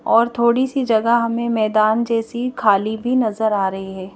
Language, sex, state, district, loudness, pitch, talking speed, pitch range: Hindi, female, Madhya Pradesh, Bhopal, -18 LUFS, 225 Hz, 190 wpm, 215-235 Hz